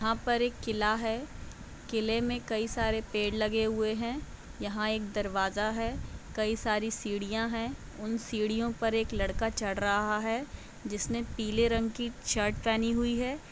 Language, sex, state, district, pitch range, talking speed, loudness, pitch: Hindi, female, Uttar Pradesh, Budaun, 215-230 Hz, 165 wpm, -31 LUFS, 220 Hz